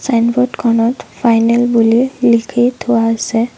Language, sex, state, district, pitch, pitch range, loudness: Assamese, female, Assam, Sonitpur, 235 Hz, 230-245 Hz, -13 LUFS